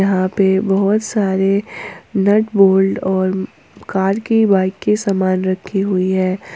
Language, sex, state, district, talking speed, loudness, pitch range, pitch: Hindi, female, Jharkhand, Ranchi, 135 wpm, -16 LUFS, 190-200 Hz, 195 Hz